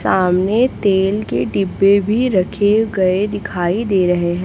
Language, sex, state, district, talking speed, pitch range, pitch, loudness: Hindi, female, Chhattisgarh, Raipur, 135 wpm, 185-210 Hz, 195 Hz, -16 LUFS